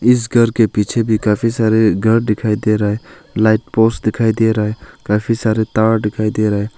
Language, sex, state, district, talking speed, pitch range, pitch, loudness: Hindi, male, Arunachal Pradesh, Longding, 220 wpm, 105-115 Hz, 110 Hz, -15 LUFS